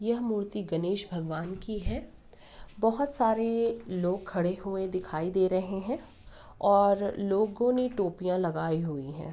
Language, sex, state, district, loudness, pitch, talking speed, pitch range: Hindi, female, Uttar Pradesh, Ghazipur, -30 LUFS, 195 Hz, 140 wpm, 180-220 Hz